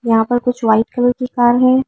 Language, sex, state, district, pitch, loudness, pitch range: Hindi, female, Delhi, New Delhi, 245 Hz, -15 LUFS, 230-250 Hz